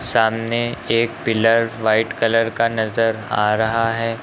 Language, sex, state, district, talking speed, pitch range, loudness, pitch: Hindi, male, Uttar Pradesh, Lucknow, 140 wpm, 110-115 Hz, -19 LUFS, 115 Hz